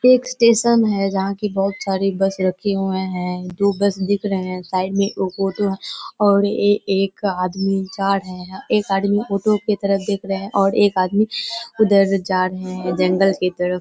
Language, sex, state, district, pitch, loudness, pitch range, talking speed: Hindi, female, Bihar, Kishanganj, 195 Hz, -19 LUFS, 190-205 Hz, 190 wpm